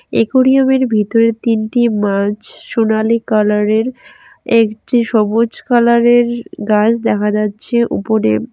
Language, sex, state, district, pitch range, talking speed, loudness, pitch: Bengali, female, West Bengal, Cooch Behar, 210-240 Hz, 90 wpm, -14 LUFS, 225 Hz